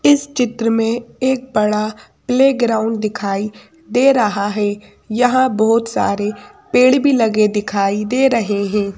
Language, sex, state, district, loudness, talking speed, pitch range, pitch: Hindi, female, Madhya Pradesh, Bhopal, -16 LUFS, 120 wpm, 210-255 Hz, 225 Hz